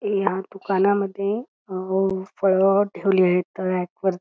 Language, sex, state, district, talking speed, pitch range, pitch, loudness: Marathi, female, Karnataka, Belgaum, 85 wpm, 185-200 Hz, 195 Hz, -22 LUFS